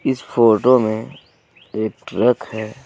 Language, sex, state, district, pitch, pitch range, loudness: Hindi, male, Jharkhand, Garhwa, 110 Hz, 110-125 Hz, -18 LUFS